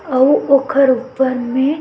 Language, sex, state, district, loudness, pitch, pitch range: Chhattisgarhi, female, Chhattisgarh, Sukma, -14 LUFS, 265 Hz, 255-275 Hz